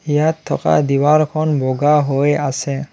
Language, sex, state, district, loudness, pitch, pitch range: Assamese, male, Assam, Kamrup Metropolitan, -16 LUFS, 145 Hz, 140-155 Hz